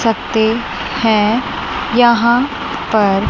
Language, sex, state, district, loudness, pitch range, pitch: Hindi, female, Chandigarh, Chandigarh, -15 LUFS, 220-245 Hz, 230 Hz